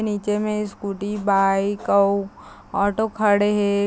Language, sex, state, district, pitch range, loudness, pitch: Chhattisgarhi, female, Chhattisgarh, Raigarh, 200-210 Hz, -21 LUFS, 205 Hz